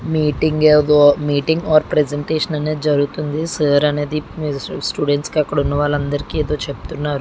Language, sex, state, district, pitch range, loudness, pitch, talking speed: Telugu, female, Telangana, Karimnagar, 145-155 Hz, -17 LUFS, 150 Hz, 125 wpm